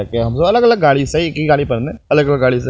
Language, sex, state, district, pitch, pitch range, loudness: Maithili, male, Bihar, Purnia, 145 Hz, 125-155 Hz, -14 LUFS